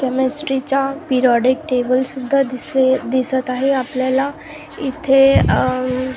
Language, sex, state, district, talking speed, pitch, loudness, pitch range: Marathi, female, Maharashtra, Gondia, 105 wpm, 260 Hz, -17 LUFS, 255-275 Hz